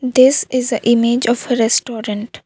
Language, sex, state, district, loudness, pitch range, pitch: English, female, Assam, Kamrup Metropolitan, -15 LUFS, 230-250 Hz, 235 Hz